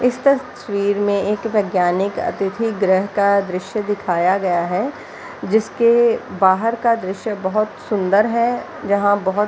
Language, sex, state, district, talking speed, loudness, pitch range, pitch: Hindi, female, Bihar, Jahanabad, 140 wpm, -18 LUFS, 190-225 Hz, 205 Hz